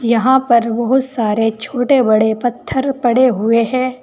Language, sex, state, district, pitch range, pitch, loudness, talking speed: Hindi, female, Uttar Pradesh, Saharanpur, 230-260 Hz, 240 Hz, -14 LUFS, 150 wpm